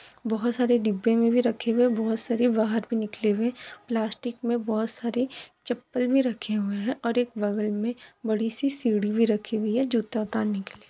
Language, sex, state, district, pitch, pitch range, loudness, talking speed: Kumaoni, female, Uttarakhand, Tehri Garhwal, 230 Hz, 220-245 Hz, -26 LUFS, 205 wpm